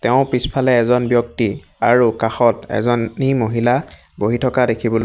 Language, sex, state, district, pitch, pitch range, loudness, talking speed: Assamese, male, Assam, Hailakandi, 120 Hz, 115-125 Hz, -17 LUFS, 140 wpm